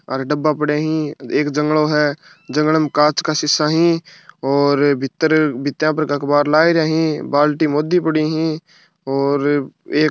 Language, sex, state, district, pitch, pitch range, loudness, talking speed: Marwari, male, Rajasthan, Churu, 150 Hz, 145-155 Hz, -17 LUFS, 170 wpm